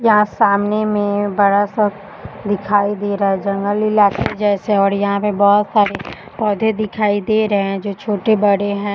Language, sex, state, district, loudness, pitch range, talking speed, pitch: Hindi, female, Jharkhand, Jamtara, -16 LUFS, 200-210 Hz, 160 wpm, 205 Hz